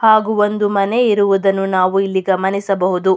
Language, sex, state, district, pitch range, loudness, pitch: Kannada, female, Karnataka, Mysore, 190-210 Hz, -15 LUFS, 195 Hz